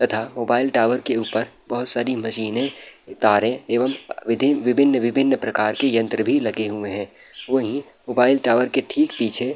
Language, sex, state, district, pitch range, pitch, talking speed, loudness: Hindi, male, Bihar, Saharsa, 110-130 Hz, 120 Hz, 165 wpm, -20 LUFS